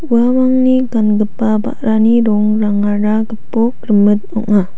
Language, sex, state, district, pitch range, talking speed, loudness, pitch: Garo, female, Meghalaya, South Garo Hills, 210-235 Hz, 90 wpm, -13 LUFS, 220 Hz